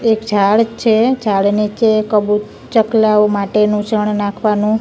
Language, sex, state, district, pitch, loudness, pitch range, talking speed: Gujarati, female, Gujarat, Gandhinagar, 210 Hz, -14 LUFS, 210-220 Hz, 125 wpm